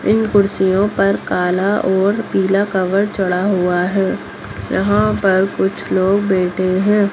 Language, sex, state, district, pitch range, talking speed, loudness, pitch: Hindi, female, Chhattisgarh, Bastar, 185-200 Hz, 135 wpm, -16 LUFS, 190 Hz